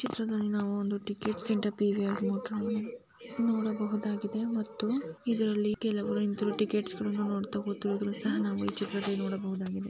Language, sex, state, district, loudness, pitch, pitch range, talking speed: Kannada, female, Karnataka, Mysore, -31 LUFS, 210 Hz, 205-220 Hz, 95 wpm